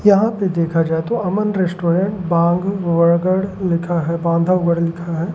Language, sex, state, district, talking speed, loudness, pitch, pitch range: Hindi, male, Madhya Pradesh, Umaria, 155 wpm, -17 LUFS, 175 Hz, 170-190 Hz